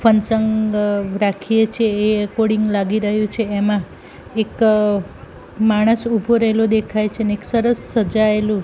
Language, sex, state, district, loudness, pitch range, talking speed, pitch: Gujarati, female, Gujarat, Gandhinagar, -17 LUFS, 210-225 Hz, 130 wpm, 215 Hz